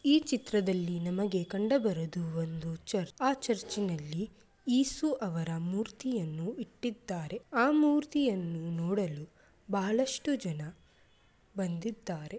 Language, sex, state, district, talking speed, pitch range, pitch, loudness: Kannada, female, Karnataka, Mysore, 90 wpm, 175-245 Hz, 205 Hz, -33 LUFS